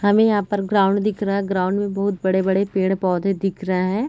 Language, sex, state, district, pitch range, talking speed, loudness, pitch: Hindi, female, Bihar, Gopalganj, 190-205 Hz, 280 wpm, -20 LUFS, 195 Hz